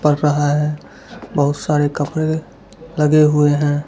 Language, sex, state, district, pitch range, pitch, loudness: Hindi, male, Gujarat, Valsad, 145-150 Hz, 150 Hz, -17 LUFS